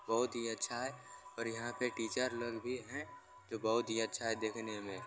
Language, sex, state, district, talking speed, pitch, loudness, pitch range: Maithili, male, Bihar, Supaul, 215 wpm, 120 Hz, -39 LUFS, 115-125 Hz